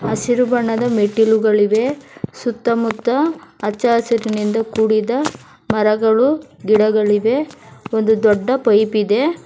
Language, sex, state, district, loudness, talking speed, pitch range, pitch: Kannada, female, Karnataka, Bangalore, -16 LUFS, 90 wpm, 215-245 Hz, 225 Hz